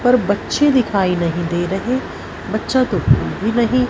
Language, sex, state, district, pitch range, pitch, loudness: Hindi, female, Punjab, Fazilka, 185-250 Hz, 220 Hz, -17 LUFS